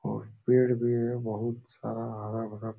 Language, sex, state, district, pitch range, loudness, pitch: Hindi, male, Uttar Pradesh, Jalaun, 110-120 Hz, -30 LUFS, 115 Hz